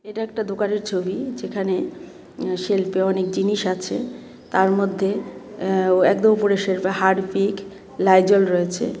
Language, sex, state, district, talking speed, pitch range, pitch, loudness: Bengali, female, Tripura, West Tripura, 135 wpm, 190-200 Hz, 195 Hz, -21 LUFS